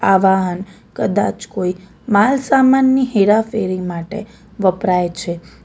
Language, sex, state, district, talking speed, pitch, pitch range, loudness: Gujarati, female, Gujarat, Valsad, 105 wpm, 195 Hz, 185-220 Hz, -16 LUFS